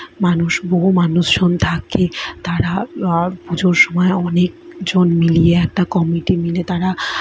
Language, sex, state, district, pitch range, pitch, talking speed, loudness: Bengali, female, West Bengal, Kolkata, 170-185 Hz, 180 Hz, 140 wpm, -16 LUFS